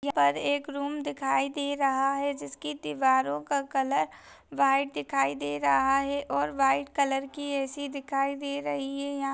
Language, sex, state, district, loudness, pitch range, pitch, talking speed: Hindi, female, Maharashtra, Pune, -28 LUFS, 260-280 Hz, 275 Hz, 180 wpm